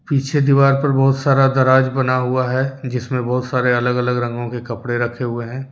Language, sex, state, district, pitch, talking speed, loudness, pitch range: Hindi, male, Jharkhand, Deoghar, 130 Hz, 210 wpm, -17 LUFS, 125-135 Hz